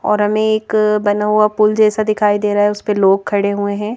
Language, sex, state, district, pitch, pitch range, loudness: Hindi, female, Madhya Pradesh, Bhopal, 210 Hz, 205-215 Hz, -15 LUFS